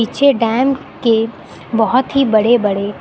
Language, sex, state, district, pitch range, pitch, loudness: Hindi, female, Uttar Pradesh, Lucknow, 220-265 Hz, 230 Hz, -15 LUFS